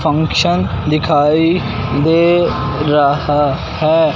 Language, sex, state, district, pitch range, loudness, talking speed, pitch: Hindi, male, Punjab, Fazilka, 140-160 Hz, -14 LUFS, 70 wpm, 150 Hz